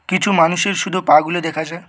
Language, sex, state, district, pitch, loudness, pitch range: Bengali, male, West Bengal, Cooch Behar, 175 Hz, -16 LUFS, 160-185 Hz